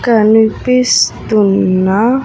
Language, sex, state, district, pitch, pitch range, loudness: Telugu, female, Andhra Pradesh, Sri Satya Sai, 220 Hz, 200-245 Hz, -11 LUFS